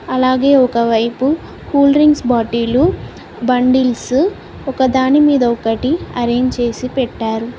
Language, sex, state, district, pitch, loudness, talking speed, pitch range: Telugu, female, Telangana, Mahabubabad, 255 Hz, -14 LUFS, 95 wpm, 235-275 Hz